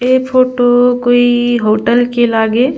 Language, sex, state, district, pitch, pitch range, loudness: Surgujia, female, Chhattisgarh, Sarguja, 245 Hz, 240-250 Hz, -11 LUFS